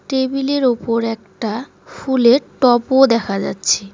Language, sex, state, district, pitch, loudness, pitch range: Bengali, female, West Bengal, Cooch Behar, 240 Hz, -16 LUFS, 225-265 Hz